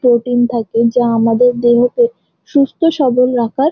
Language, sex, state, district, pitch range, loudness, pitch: Bengali, female, West Bengal, Jhargram, 235-275 Hz, -13 LUFS, 245 Hz